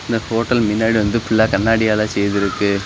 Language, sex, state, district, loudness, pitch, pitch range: Tamil, male, Tamil Nadu, Kanyakumari, -17 LUFS, 110 Hz, 100-115 Hz